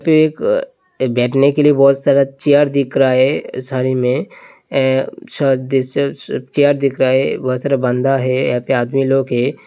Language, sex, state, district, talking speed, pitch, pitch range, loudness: Hindi, male, Uttar Pradesh, Hamirpur, 160 wpm, 135 Hz, 130-140 Hz, -15 LUFS